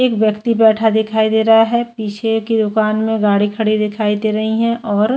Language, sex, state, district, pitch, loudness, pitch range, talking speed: Hindi, female, Chhattisgarh, Kabirdham, 220 Hz, -15 LUFS, 215-225 Hz, 210 wpm